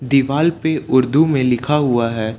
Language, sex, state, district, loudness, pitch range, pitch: Hindi, male, Jharkhand, Ranchi, -16 LUFS, 125-150 Hz, 135 Hz